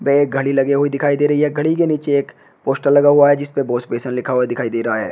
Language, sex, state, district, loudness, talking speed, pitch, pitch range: Hindi, male, Uttar Pradesh, Shamli, -16 LUFS, 295 wpm, 140 Hz, 125-145 Hz